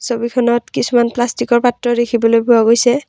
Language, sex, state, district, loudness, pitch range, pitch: Assamese, female, Assam, Kamrup Metropolitan, -14 LUFS, 235-245 Hz, 240 Hz